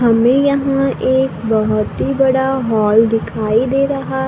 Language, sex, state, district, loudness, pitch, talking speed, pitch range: Hindi, female, Maharashtra, Gondia, -15 LUFS, 240 Hz, 140 wpm, 220-270 Hz